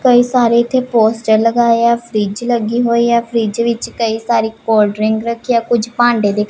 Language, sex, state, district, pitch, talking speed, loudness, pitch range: Punjabi, female, Punjab, Pathankot, 235 Hz, 205 wpm, -14 LUFS, 220-235 Hz